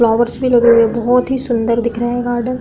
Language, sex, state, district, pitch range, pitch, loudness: Hindi, female, Uttar Pradesh, Deoria, 235-245 Hz, 240 Hz, -14 LUFS